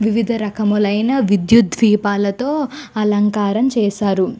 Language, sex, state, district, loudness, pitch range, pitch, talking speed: Telugu, female, Andhra Pradesh, Guntur, -16 LUFS, 205-235 Hz, 215 Hz, 95 wpm